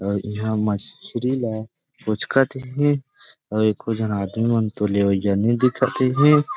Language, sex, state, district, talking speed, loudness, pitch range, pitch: Chhattisgarhi, male, Chhattisgarh, Rajnandgaon, 135 wpm, -21 LUFS, 105-130 Hz, 115 Hz